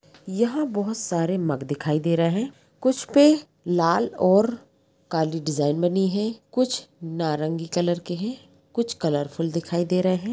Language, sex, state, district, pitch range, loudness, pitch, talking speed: Hindi, female, Bihar, Madhepura, 165-230 Hz, -24 LUFS, 175 Hz, 155 wpm